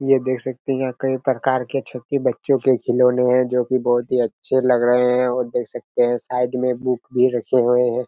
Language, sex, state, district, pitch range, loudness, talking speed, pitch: Hindi, male, Chhattisgarh, Raigarh, 125-130 Hz, -19 LUFS, 230 wpm, 125 Hz